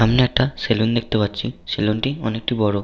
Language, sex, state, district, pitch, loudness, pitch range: Bengali, male, West Bengal, Paschim Medinipur, 115 Hz, -20 LUFS, 110-125 Hz